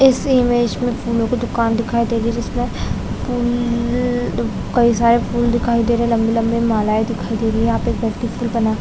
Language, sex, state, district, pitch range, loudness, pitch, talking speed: Hindi, female, Chhattisgarh, Raigarh, 230-240 Hz, -18 LUFS, 235 Hz, 195 wpm